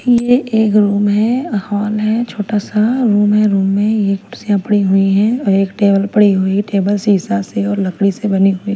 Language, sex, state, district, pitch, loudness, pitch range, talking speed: Hindi, female, Bihar, West Champaran, 205 Hz, -14 LUFS, 195-215 Hz, 210 wpm